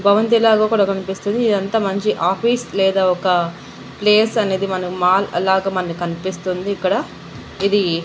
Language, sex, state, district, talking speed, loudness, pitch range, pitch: Telugu, female, Andhra Pradesh, Annamaya, 135 wpm, -18 LUFS, 185-210 Hz, 195 Hz